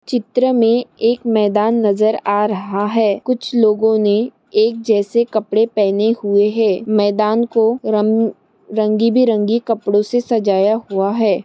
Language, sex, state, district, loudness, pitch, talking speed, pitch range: Hindi, female, Maharashtra, Solapur, -16 LUFS, 220 Hz, 135 wpm, 210-230 Hz